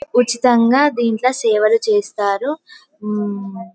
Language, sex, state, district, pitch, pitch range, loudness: Telugu, female, Telangana, Karimnagar, 235 Hz, 210-285 Hz, -16 LUFS